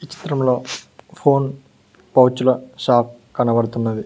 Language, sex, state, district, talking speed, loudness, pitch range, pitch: Telugu, male, Telangana, Mahabubabad, 75 wpm, -18 LUFS, 120-140 Hz, 130 Hz